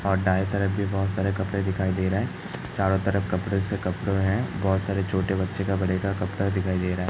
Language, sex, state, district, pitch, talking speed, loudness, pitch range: Hindi, male, Uttar Pradesh, Hamirpur, 95 Hz, 245 wpm, -26 LUFS, 95-100 Hz